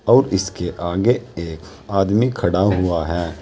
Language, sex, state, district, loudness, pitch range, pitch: Hindi, male, Uttar Pradesh, Saharanpur, -19 LUFS, 85-100 Hz, 95 Hz